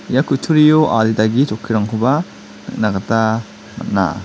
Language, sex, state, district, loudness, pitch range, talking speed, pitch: Garo, male, Meghalaya, West Garo Hills, -16 LUFS, 110-140 Hz, 115 wpm, 115 Hz